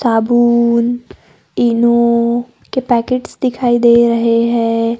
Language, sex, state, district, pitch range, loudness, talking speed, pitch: Hindi, female, Maharashtra, Gondia, 235-240 Hz, -13 LUFS, 95 wpm, 235 Hz